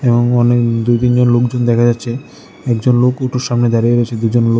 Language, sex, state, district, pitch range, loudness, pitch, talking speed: Bengali, male, Tripura, West Tripura, 120-125 Hz, -13 LUFS, 120 Hz, 195 wpm